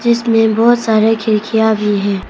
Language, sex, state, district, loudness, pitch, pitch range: Hindi, female, Arunachal Pradesh, Papum Pare, -13 LUFS, 220 Hz, 215-230 Hz